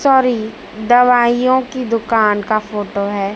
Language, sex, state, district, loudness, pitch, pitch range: Hindi, female, Madhya Pradesh, Dhar, -15 LUFS, 225 Hz, 210-250 Hz